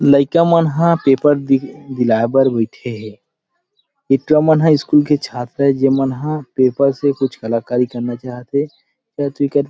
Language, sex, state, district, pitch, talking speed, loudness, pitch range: Chhattisgarhi, male, Chhattisgarh, Rajnandgaon, 140 Hz, 165 wpm, -16 LUFS, 125-150 Hz